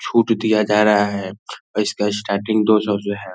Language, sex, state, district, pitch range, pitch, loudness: Hindi, male, Bihar, Darbhanga, 100-110 Hz, 105 Hz, -18 LUFS